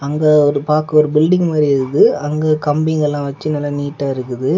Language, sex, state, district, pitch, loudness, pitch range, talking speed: Tamil, male, Tamil Nadu, Kanyakumari, 150 Hz, -15 LUFS, 145-155 Hz, 170 wpm